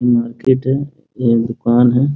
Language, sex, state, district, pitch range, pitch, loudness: Hindi, male, Bihar, Muzaffarpur, 120-135 Hz, 125 Hz, -15 LUFS